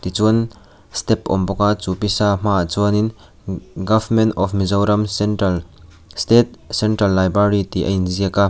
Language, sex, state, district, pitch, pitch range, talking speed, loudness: Mizo, male, Mizoram, Aizawl, 100 Hz, 95-105 Hz, 140 wpm, -18 LUFS